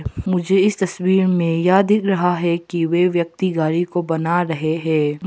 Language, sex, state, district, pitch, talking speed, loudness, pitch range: Hindi, female, Arunachal Pradesh, Papum Pare, 175 Hz, 180 wpm, -18 LUFS, 165-185 Hz